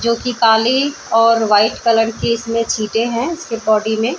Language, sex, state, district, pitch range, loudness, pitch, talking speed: Hindi, female, Chhattisgarh, Bilaspur, 220-235 Hz, -15 LUFS, 230 Hz, 185 wpm